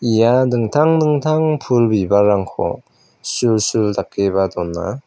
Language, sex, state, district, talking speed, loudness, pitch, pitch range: Garo, male, Meghalaya, West Garo Hills, 95 wpm, -16 LUFS, 115 Hz, 100-135 Hz